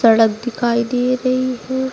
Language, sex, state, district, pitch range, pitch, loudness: Hindi, female, Uttar Pradesh, Lucknow, 235-255 Hz, 250 Hz, -18 LUFS